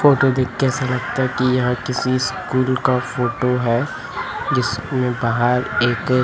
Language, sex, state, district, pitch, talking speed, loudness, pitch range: Hindi, male, Chhattisgarh, Raipur, 125 Hz, 155 wpm, -19 LUFS, 120-130 Hz